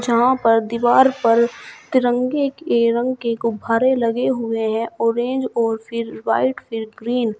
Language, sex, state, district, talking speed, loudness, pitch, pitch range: Hindi, female, Uttar Pradesh, Shamli, 155 wpm, -19 LUFS, 235 Hz, 230-255 Hz